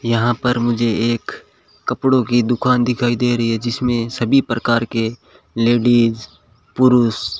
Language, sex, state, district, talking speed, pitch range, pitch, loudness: Hindi, male, Rajasthan, Bikaner, 145 wpm, 115-120 Hz, 120 Hz, -17 LUFS